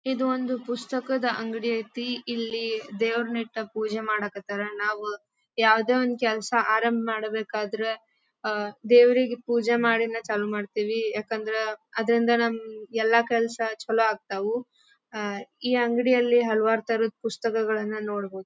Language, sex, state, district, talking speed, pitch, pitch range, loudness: Kannada, female, Karnataka, Dharwad, 115 wpm, 225 Hz, 215-235 Hz, -25 LUFS